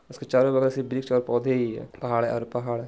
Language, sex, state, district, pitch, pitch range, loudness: Hindi, male, Bihar, Begusarai, 125 Hz, 120-130 Hz, -25 LUFS